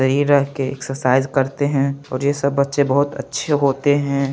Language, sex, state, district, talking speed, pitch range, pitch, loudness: Hindi, male, Chandigarh, Chandigarh, 180 wpm, 135-145 Hz, 140 Hz, -19 LUFS